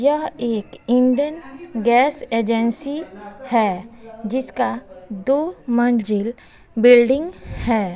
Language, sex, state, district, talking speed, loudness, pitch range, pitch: Hindi, female, Bihar, West Champaran, 85 wpm, -19 LUFS, 225-265 Hz, 240 Hz